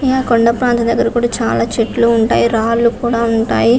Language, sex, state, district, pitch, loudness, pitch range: Telugu, female, Andhra Pradesh, Visakhapatnam, 235 Hz, -14 LUFS, 230-240 Hz